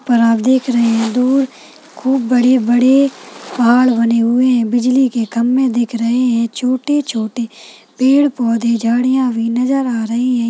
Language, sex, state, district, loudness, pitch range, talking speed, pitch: Hindi, female, Chhattisgarh, Balrampur, -14 LUFS, 230-255 Hz, 170 wpm, 245 Hz